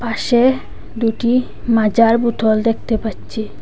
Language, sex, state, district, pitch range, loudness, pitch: Bengali, female, Assam, Hailakandi, 220-240 Hz, -16 LUFS, 230 Hz